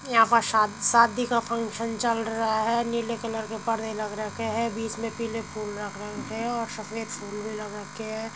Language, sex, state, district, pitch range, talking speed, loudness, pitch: Hindi, female, Uttar Pradesh, Muzaffarnagar, 215-230 Hz, 215 wpm, -27 LUFS, 225 Hz